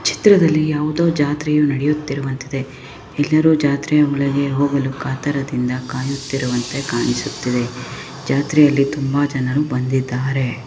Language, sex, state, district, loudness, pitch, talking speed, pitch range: Kannada, female, Karnataka, Chamarajanagar, -18 LUFS, 140 Hz, 90 wpm, 130-145 Hz